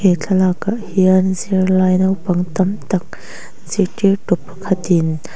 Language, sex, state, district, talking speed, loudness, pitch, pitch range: Mizo, female, Mizoram, Aizawl, 110 wpm, -16 LUFS, 185 Hz, 180-190 Hz